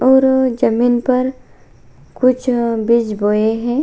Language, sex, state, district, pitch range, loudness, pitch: Hindi, female, Bihar, Bhagalpur, 230-260 Hz, -15 LUFS, 245 Hz